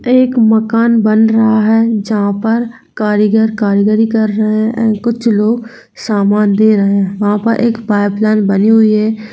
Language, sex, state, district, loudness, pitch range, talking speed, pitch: Hindi, female, Jharkhand, Sahebganj, -12 LUFS, 210-225 Hz, 160 wpm, 220 Hz